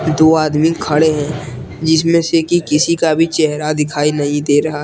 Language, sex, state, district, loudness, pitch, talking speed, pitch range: Hindi, male, Jharkhand, Deoghar, -14 LUFS, 155 Hz, 200 wpm, 150-160 Hz